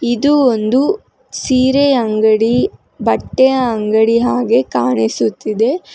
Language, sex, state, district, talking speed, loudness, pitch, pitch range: Kannada, female, Karnataka, Bangalore, 80 wpm, -14 LUFS, 240 Hz, 215-260 Hz